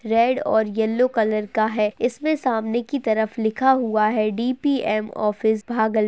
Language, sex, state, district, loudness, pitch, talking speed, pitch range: Hindi, female, Bihar, Bhagalpur, -21 LUFS, 220 Hz, 165 wpm, 215-250 Hz